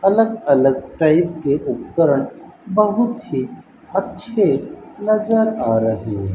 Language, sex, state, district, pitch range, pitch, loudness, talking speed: Hindi, male, Rajasthan, Bikaner, 135-215 Hz, 165 Hz, -18 LUFS, 115 wpm